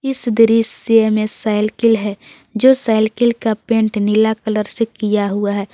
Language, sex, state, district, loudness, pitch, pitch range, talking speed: Hindi, female, Jharkhand, Garhwa, -16 LUFS, 220 Hz, 210-230 Hz, 155 wpm